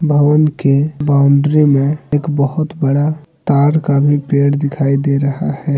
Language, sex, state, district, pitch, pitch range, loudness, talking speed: Hindi, male, Jharkhand, Deoghar, 145 Hz, 140-150 Hz, -14 LUFS, 155 wpm